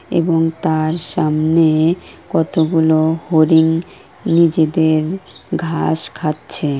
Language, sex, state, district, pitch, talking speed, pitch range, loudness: Bengali, female, West Bengal, Purulia, 160 Hz, 70 wpm, 155-165 Hz, -16 LUFS